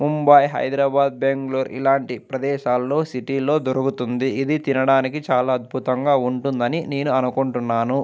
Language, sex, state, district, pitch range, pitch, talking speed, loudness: Telugu, male, Andhra Pradesh, Anantapur, 125-140 Hz, 135 Hz, 110 wpm, -20 LUFS